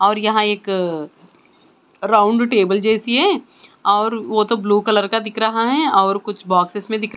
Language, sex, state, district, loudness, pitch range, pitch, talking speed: Hindi, female, Bihar, West Champaran, -17 LUFS, 200-220 Hz, 215 Hz, 185 wpm